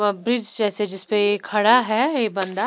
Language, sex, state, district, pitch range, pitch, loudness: Hindi, female, Punjab, Pathankot, 205-230 Hz, 210 Hz, -15 LUFS